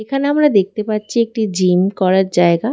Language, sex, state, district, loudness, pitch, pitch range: Bengali, female, West Bengal, Dakshin Dinajpur, -15 LUFS, 210 Hz, 185-230 Hz